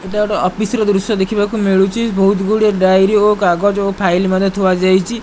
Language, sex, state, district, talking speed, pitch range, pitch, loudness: Odia, male, Odisha, Malkangiri, 195 wpm, 190-210 Hz, 200 Hz, -14 LUFS